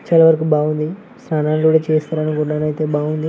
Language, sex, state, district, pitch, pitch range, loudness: Telugu, male, Andhra Pradesh, Srikakulam, 155 Hz, 150-160 Hz, -17 LUFS